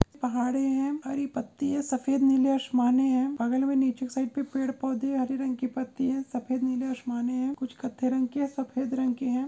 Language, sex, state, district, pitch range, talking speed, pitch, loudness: Hindi, female, Goa, North and South Goa, 255-270 Hz, 215 wpm, 260 Hz, -28 LUFS